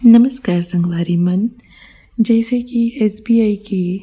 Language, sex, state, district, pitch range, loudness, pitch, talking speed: Chhattisgarhi, female, Chhattisgarh, Rajnandgaon, 180-235 Hz, -16 LUFS, 215 Hz, 135 wpm